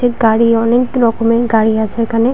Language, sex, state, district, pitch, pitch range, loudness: Bengali, female, West Bengal, Purulia, 230 Hz, 225-240 Hz, -13 LUFS